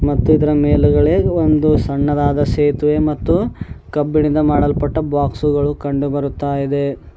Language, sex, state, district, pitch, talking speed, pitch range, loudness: Kannada, male, Karnataka, Bidar, 145 Hz, 110 wpm, 140-150 Hz, -16 LUFS